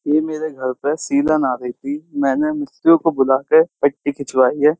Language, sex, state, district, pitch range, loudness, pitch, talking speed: Hindi, male, Uttar Pradesh, Jyotiba Phule Nagar, 135-155 Hz, -18 LUFS, 145 Hz, 190 wpm